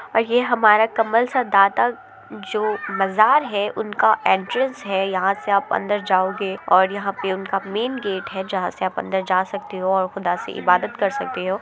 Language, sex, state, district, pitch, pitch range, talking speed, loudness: Hindi, female, Bihar, Muzaffarpur, 200 Hz, 190-220 Hz, 195 wpm, -20 LUFS